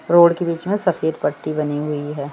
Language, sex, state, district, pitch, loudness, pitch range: Hindi, female, Madhya Pradesh, Bhopal, 160 Hz, -19 LUFS, 150-170 Hz